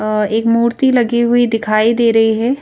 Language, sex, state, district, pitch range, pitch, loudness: Hindi, female, Madhya Pradesh, Bhopal, 220-240 Hz, 230 Hz, -13 LUFS